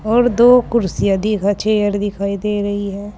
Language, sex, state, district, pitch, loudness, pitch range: Hindi, female, Uttar Pradesh, Saharanpur, 205 Hz, -16 LUFS, 200-215 Hz